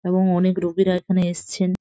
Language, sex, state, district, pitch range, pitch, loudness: Bengali, female, West Bengal, Jhargram, 180-185 Hz, 185 Hz, -21 LUFS